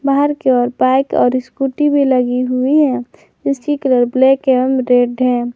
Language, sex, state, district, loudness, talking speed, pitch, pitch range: Hindi, female, Jharkhand, Garhwa, -14 LUFS, 170 wpm, 260 Hz, 250-275 Hz